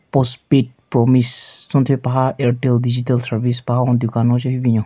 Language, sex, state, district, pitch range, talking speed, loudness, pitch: Rengma, male, Nagaland, Kohima, 120-130 Hz, 185 wpm, -17 LUFS, 125 Hz